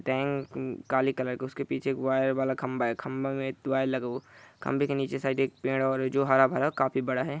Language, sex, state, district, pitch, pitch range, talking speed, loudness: Hindi, male, Bihar, Saran, 135 Hz, 130-135 Hz, 245 wpm, -29 LUFS